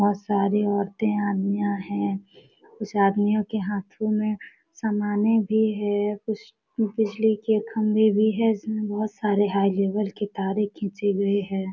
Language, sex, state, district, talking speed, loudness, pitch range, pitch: Hindi, female, Jharkhand, Sahebganj, 150 wpm, -24 LUFS, 200-215 Hz, 210 Hz